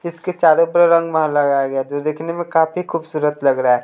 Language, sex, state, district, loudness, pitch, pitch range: Hindi, male, Bihar, West Champaran, -17 LUFS, 160 Hz, 145-170 Hz